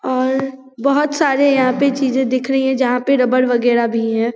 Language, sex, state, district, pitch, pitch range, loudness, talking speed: Hindi, female, Bihar, Vaishali, 260 Hz, 250-270 Hz, -16 LUFS, 205 wpm